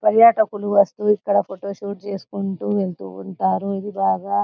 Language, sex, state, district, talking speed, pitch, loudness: Telugu, female, Telangana, Karimnagar, 120 wpm, 200 Hz, -20 LUFS